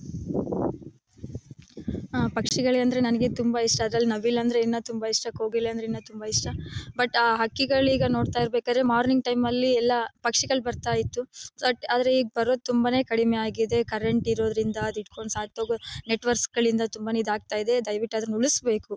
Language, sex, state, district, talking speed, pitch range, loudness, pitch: Kannada, female, Karnataka, Bellary, 150 wpm, 220-245 Hz, -25 LUFS, 230 Hz